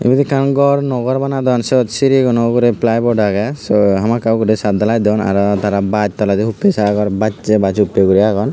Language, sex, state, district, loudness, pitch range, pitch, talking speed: Chakma, male, Tripura, Unakoti, -14 LUFS, 105-130 Hz, 110 Hz, 205 wpm